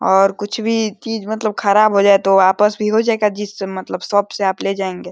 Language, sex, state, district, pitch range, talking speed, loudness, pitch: Hindi, male, Uttar Pradesh, Deoria, 195-215 Hz, 235 wpm, -16 LUFS, 205 Hz